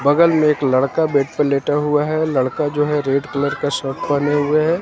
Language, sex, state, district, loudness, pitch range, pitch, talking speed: Hindi, male, Haryana, Jhajjar, -18 LUFS, 140-150 Hz, 145 Hz, 235 wpm